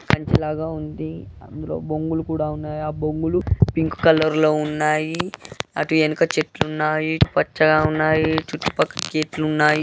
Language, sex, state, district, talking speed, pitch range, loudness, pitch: Telugu, male, Andhra Pradesh, Guntur, 145 wpm, 150-160 Hz, -21 LUFS, 155 Hz